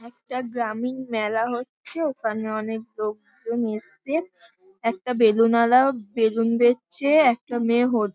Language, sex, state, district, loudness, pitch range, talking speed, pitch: Bengali, female, West Bengal, Paschim Medinipur, -23 LUFS, 225-250 Hz, 125 wpm, 235 Hz